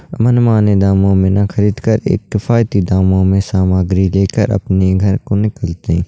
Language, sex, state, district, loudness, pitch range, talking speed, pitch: Hindi, male, Uttarakhand, Uttarkashi, -13 LUFS, 95-105 Hz, 170 wpm, 100 Hz